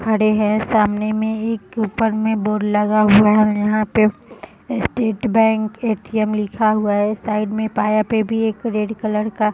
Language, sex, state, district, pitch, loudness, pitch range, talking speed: Hindi, female, Bihar, Madhepura, 215 Hz, -18 LUFS, 210-220 Hz, 190 wpm